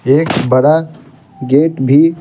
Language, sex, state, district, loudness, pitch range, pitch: Hindi, male, Bihar, Patna, -12 LUFS, 130-160 Hz, 145 Hz